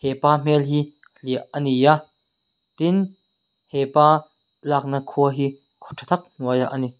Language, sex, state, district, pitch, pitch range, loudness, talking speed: Mizo, male, Mizoram, Aizawl, 145 Hz, 140-155 Hz, -21 LUFS, 145 wpm